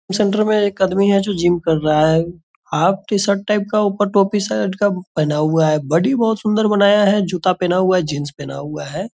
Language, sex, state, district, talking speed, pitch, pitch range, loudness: Hindi, male, Bihar, Purnia, 220 wpm, 190 Hz, 160-205 Hz, -17 LUFS